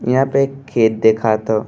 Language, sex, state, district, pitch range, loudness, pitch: Bhojpuri, male, Uttar Pradesh, Gorakhpur, 110-135 Hz, -16 LUFS, 115 Hz